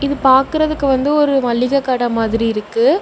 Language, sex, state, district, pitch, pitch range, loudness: Tamil, female, Tamil Nadu, Namakkal, 265 Hz, 240-285 Hz, -15 LUFS